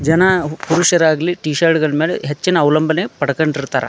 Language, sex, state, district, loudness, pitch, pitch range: Kannada, male, Karnataka, Dharwad, -15 LUFS, 160 Hz, 150-170 Hz